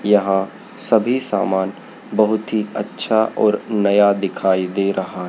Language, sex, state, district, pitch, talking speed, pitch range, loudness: Hindi, male, Madhya Pradesh, Dhar, 100 Hz, 125 wpm, 95-110 Hz, -18 LUFS